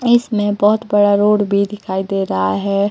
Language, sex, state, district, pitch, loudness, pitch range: Hindi, female, Himachal Pradesh, Shimla, 205 Hz, -16 LUFS, 195-210 Hz